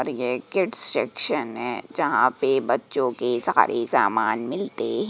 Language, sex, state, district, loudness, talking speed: Hindi, female, Madhya Pradesh, Umaria, -22 LUFS, 140 wpm